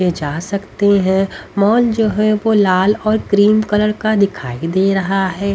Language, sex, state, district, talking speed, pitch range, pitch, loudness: Hindi, female, Haryana, Rohtak, 185 wpm, 190-215 Hz, 200 Hz, -15 LUFS